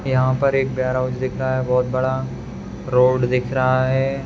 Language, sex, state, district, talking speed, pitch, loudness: Hindi, male, Bihar, Madhepura, 185 wpm, 130 Hz, -20 LUFS